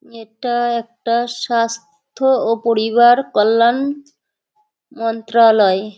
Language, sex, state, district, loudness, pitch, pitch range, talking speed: Bengali, female, West Bengal, Kolkata, -16 LUFS, 235 Hz, 225-265 Hz, 70 wpm